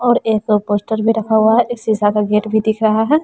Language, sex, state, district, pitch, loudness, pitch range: Hindi, female, Bihar, West Champaran, 220 Hz, -15 LUFS, 210-225 Hz